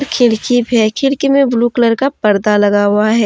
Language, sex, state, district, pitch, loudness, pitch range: Hindi, female, Jharkhand, Deoghar, 235 Hz, -12 LUFS, 215-265 Hz